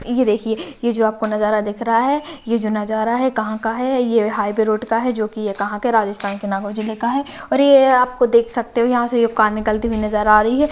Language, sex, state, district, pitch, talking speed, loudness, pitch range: Hindi, female, Rajasthan, Nagaur, 225 Hz, 270 wpm, -18 LUFS, 215-245 Hz